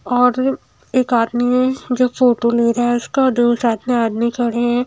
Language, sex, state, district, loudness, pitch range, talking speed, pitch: Hindi, female, Himachal Pradesh, Shimla, -17 LUFS, 235-250 Hz, 185 wpm, 240 Hz